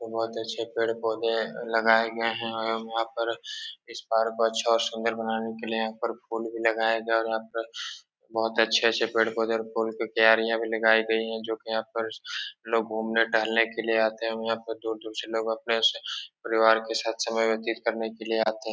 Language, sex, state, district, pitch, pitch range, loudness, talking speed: Hindi, male, Uttar Pradesh, Etah, 115 Hz, 110-115 Hz, -27 LUFS, 215 wpm